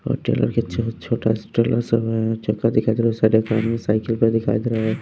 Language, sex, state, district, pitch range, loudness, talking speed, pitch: Hindi, male, Bihar, West Champaran, 110-115 Hz, -20 LUFS, 215 wpm, 115 Hz